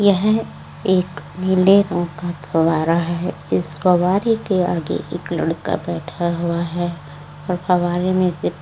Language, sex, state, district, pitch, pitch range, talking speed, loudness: Hindi, female, Uttar Pradesh, Varanasi, 175 Hz, 165-185 Hz, 145 wpm, -19 LUFS